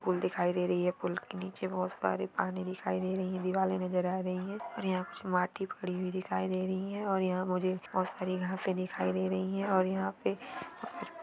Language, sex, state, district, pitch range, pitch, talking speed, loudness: Hindi, female, Maharashtra, Sindhudurg, 185-190 Hz, 185 Hz, 235 wpm, -34 LUFS